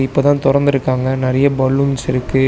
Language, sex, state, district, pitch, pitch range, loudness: Tamil, male, Tamil Nadu, Chennai, 135 Hz, 130-140 Hz, -15 LUFS